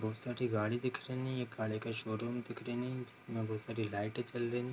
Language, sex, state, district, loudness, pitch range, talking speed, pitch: Hindi, male, Bihar, Darbhanga, -39 LUFS, 110-125 Hz, 255 wpm, 120 Hz